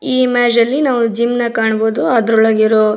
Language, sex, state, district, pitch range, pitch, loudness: Kannada, female, Karnataka, Raichur, 220-245 Hz, 235 Hz, -13 LUFS